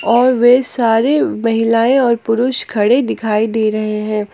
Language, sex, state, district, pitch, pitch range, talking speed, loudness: Hindi, female, Jharkhand, Palamu, 230 Hz, 215-250 Hz, 150 wpm, -14 LUFS